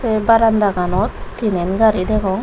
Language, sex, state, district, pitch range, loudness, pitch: Chakma, female, Tripura, Unakoti, 190-220 Hz, -16 LUFS, 215 Hz